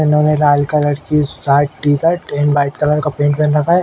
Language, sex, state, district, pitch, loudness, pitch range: Hindi, male, Uttar Pradesh, Ghazipur, 150 Hz, -14 LUFS, 145-150 Hz